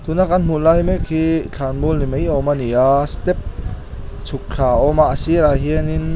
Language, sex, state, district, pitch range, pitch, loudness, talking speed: Mizo, male, Mizoram, Aizawl, 130-160 Hz, 150 Hz, -17 LUFS, 245 wpm